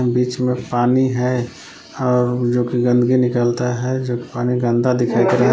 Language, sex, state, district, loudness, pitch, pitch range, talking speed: Hindi, male, Jharkhand, Palamu, -18 LUFS, 125 Hz, 120-125 Hz, 160 wpm